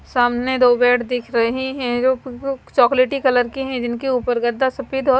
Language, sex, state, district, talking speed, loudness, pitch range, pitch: Hindi, female, Himachal Pradesh, Shimla, 185 wpm, -18 LUFS, 245-265 Hz, 255 Hz